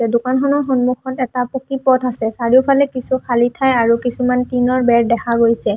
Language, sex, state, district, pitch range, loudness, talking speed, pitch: Assamese, female, Assam, Hailakandi, 235-260 Hz, -16 LUFS, 175 wpm, 250 Hz